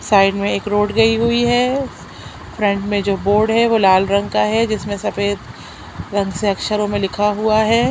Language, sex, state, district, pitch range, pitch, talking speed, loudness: Hindi, female, Chhattisgarh, Sukma, 200-220 Hz, 205 Hz, 195 wpm, -17 LUFS